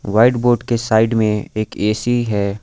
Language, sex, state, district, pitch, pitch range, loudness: Hindi, male, Sikkim, Gangtok, 110 Hz, 105-120 Hz, -17 LUFS